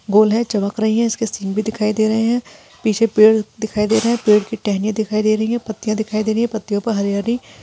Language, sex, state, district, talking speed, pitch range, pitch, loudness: Hindi, female, Rajasthan, Churu, 265 wpm, 215-225 Hz, 220 Hz, -18 LUFS